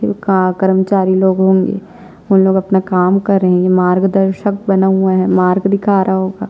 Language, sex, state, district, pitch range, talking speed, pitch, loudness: Hindi, female, Chhattisgarh, Jashpur, 185-195 Hz, 175 wpm, 190 Hz, -13 LUFS